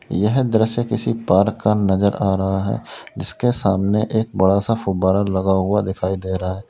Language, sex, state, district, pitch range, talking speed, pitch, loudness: Hindi, male, Uttar Pradesh, Lalitpur, 95-110 Hz, 190 wpm, 100 Hz, -19 LUFS